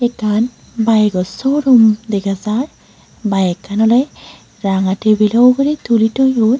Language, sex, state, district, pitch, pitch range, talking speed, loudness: Chakma, female, Tripura, Unakoti, 220 Hz, 205-245 Hz, 120 wpm, -14 LUFS